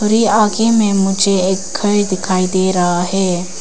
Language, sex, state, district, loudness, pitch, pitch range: Hindi, female, Arunachal Pradesh, Papum Pare, -14 LUFS, 195 Hz, 185-205 Hz